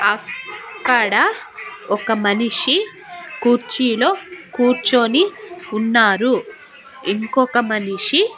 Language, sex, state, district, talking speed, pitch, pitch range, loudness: Telugu, female, Andhra Pradesh, Annamaya, 55 wpm, 250 Hz, 220-365 Hz, -17 LUFS